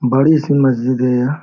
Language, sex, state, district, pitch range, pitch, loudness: Hindi, male, Jharkhand, Sahebganj, 125-145 Hz, 130 Hz, -14 LUFS